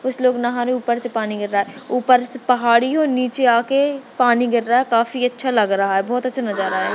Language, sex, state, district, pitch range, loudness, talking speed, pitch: Hindi, female, Maharashtra, Sindhudurg, 235-255 Hz, -18 LUFS, 260 wpm, 245 Hz